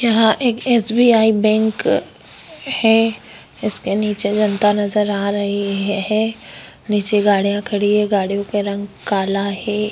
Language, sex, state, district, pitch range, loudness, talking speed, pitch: Hindi, female, Chhattisgarh, Korba, 200-220 Hz, -17 LUFS, 140 wpm, 210 Hz